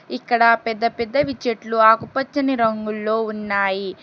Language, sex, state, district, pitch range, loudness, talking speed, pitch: Telugu, female, Telangana, Hyderabad, 215-240 Hz, -19 LUFS, 105 wpm, 225 Hz